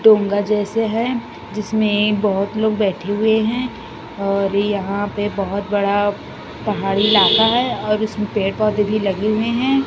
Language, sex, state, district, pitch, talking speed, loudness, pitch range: Hindi, female, Chhattisgarh, Raipur, 210 Hz, 145 wpm, -18 LUFS, 200-220 Hz